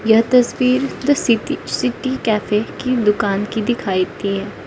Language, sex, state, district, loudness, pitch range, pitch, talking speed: Hindi, female, Arunachal Pradesh, Lower Dibang Valley, -18 LUFS, 210-255 Hz, 230 Hz, 155 wpm